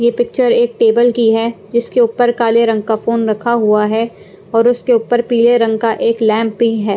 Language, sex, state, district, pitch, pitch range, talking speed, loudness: Hindi, female, Punjab, Pathankot, 230 Hz, 225-240 Hz, 215 wpm, -13 LUFS